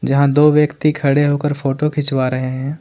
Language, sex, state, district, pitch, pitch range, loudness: Hindi, male, Jharkhand, Ranchi, 145 Hz, 135-150 Hz, -16 LUFS